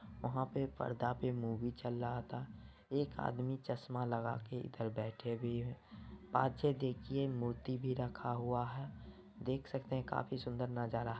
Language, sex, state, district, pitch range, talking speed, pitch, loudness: Hindi, male, Bihar, Saran, 120-130 Hz, 155 wpm, 125 Hz, -41 LUFS